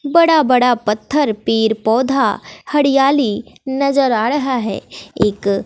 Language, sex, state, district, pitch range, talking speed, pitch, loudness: Hindi, female, Bihar, West Champaran, 220-280 Hz, 115 wpm, 255 Hz, -15 LUFS